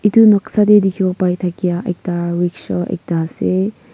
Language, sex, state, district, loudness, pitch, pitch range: Nagamese, female, Nagaland, Kohima, -16 LUFS, 185 Hz, 175-200 Hz